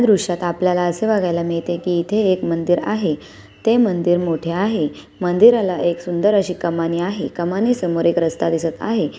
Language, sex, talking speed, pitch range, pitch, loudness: Marathi, female, 170 wpm, 170-205 Hz, 175 Hz, -18 LUFS